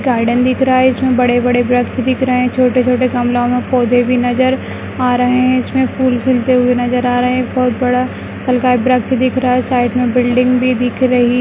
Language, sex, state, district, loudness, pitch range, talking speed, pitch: Hindi, female, Bihar, Madhepura, -13 LUFS, 245-255 Hz, 215 wpm, 250 Hz